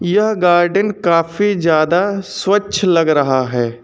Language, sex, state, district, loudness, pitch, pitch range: Hindi, male, Uttar Pradesh, Lucknow, -15 LUFS, 175 Hz, 160-205 Hz